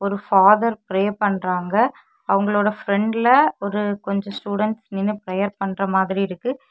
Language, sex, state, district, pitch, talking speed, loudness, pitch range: Tamil, female, Tamil Nadu, Kanyakumari, 200 Hz, 115 wpm, -20 LUFS, 195-210 Hz